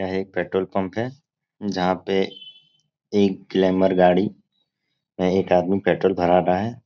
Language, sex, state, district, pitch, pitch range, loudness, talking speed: Hindi, male, Bihar, Supaul, 95 Hz, 95-115 Hz, -21 LUFS, 165 wpm